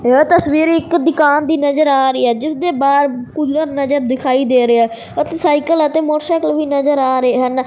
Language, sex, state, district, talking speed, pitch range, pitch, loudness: Punjabi, male, Punjab, Fazilka, 205 wpm, 260-310 Hz, 290 Hz, -14 LUFS